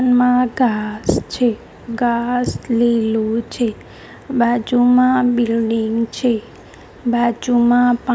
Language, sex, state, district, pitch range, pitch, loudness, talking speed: Gujarati, female, Gujarat, Gandhinagar, 230-245 Hz, 240 Hz, -17 LUFS, 75 wpm